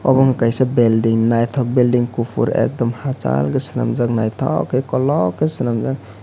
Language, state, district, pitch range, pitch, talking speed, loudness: Kokborok, Tripura, West Tripura, 115-130 Hz, 120 Hz, 155 wpm, -17 LUFS